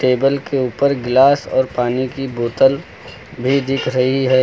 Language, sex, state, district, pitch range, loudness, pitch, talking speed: Hindi, male, Uttar Pradesh, Lucknow, 125-135 Hz, -17 LUFS, 130 Hz, 160 wpm